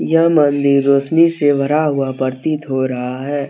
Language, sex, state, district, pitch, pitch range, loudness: Hindi, male, Jharkhand, Deoghar, 140 Hz, 135-155 Hz, -15 LUFS